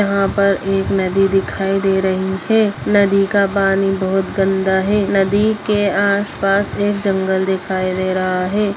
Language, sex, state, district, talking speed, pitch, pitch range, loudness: Hindi, female, Bihar, Muzaffarpur, 155 wpm, 195 Hz, 190-200 Hz, -16 LUFS